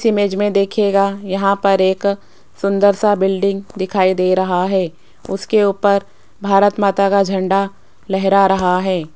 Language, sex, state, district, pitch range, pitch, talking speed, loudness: Hindi, female, Rajasthan, Jaipur, 190-200 Hz, 195 Hz, 145 wpm, -16 LUFS